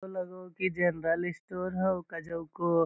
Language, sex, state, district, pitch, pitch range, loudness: Magahi, male, Bihar, Lakhisarai, 175 Hz, 170-185 Hz, -32 LUFS